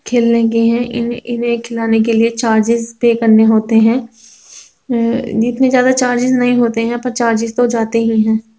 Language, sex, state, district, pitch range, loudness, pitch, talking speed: Hindi, female, Bihar, Begusarai, 225-240 Hz, -13 LUFS, 235 Hz, 180 wpm